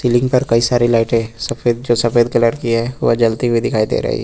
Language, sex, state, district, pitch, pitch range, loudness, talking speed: Hindi, male, Uttar Pradesh, Lucknow, 120 Hz, 115-120 Hz, -15 LUFS, 255 wpm